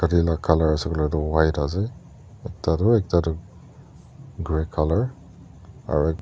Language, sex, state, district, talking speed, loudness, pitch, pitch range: Nagamese, male, Nagaland, Dimapur, 115 wpm, -23 LUFS, 85 Hz, 80-95 Hz